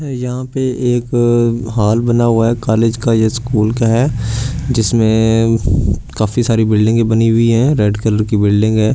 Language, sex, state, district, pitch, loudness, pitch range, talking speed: Hindi, male, Delhi, New Delhi, 115 Hz, -14 LUFS, 110-120 Hz, 165 wpm